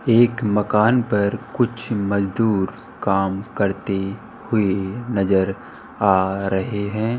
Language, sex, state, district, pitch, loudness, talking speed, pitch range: Hindi, male, Rajasthan, Jaipur, 100 Hz, -21 LUFS, 100 wpm, 95-110 Hz